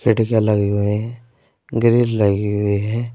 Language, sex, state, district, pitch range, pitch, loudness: Hindi, male, Uttar Pradesh, Saharanpur, 105-115 Hz, 110 Hz, -18 LUFS